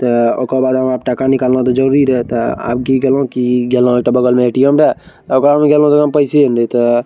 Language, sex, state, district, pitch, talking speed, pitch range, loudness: Maithili, male, Bihar, Araria, 130 Hz, 240 wpm, 125-135 Hz, -12 LUFS